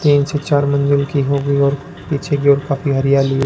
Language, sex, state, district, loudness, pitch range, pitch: Hindi, male, Rajasthan, Bikaner, -16 LUFS, 140-145 Hz, 140 Hz